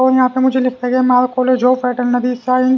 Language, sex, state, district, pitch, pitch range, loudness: Hindi, male, Haryana, Jhajjar, 255 Hz, 250-255 Hz, -14 LUFS